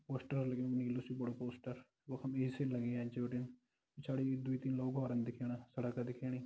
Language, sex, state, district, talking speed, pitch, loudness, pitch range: Hindi, male, Uttarakhand, Tehri Garhwal, 175 wpm, 125 Hz, -41 LUFS, 125-130 Hz